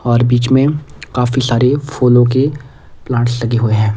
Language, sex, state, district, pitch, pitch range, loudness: Hindi, male, Himachal Pradesh, Shimla, 125 Hz, 120-135 Hz, -14 LUFS